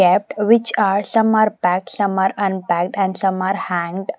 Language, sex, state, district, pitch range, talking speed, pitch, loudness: English, female, Odisha, Nuapada, 185-215 Hz, 170 wpm, 195 Hz, -18 LUFS